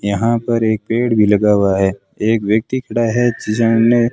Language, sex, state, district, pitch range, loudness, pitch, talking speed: Hindi, male, Rajasthan, Bikaner, 105-115 Hz, -15 LUFS, 115 Hz, 205 wpm